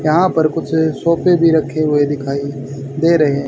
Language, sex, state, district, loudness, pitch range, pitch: Hindi, male, Haryana, Rohtak, -15 LUFS, 140-165 Hz, 155 Hz